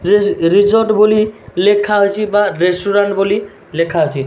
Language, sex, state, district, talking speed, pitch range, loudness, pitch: Odia, male, Odisha, Malkangiri, 125 wpm, 180-210 Hz, -13 LUFS, 205 Hz